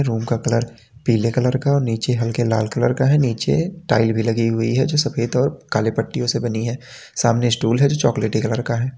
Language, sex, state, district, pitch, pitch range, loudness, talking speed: Hindi, male, Uttar Pradesh, Lalitpur, 120 Hz, 115-130 Hz, -19 LUFS, 235 wpm